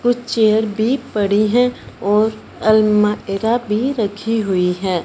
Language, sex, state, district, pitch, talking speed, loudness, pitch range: Hindi, male, Punjab, Fazilka, 215 Hz, 130 wpm, -17 LUFS, 205-230 Hz